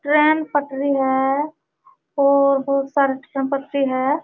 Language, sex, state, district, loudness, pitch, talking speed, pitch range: Hindi, female, Uttar Pradesh, Jalaun, -19 LUFS, 280 Hz, 125 wpm, 275-295 Hz